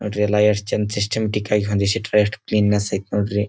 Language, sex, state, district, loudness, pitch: Kannada, male, Karnataka, Dharwad, -20 LUFS, 105 Hz